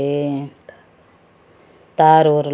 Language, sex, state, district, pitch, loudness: Bhojpuri, male, Uttar Pradesh, Gorakhpur, 140 Hz, -15 LUFS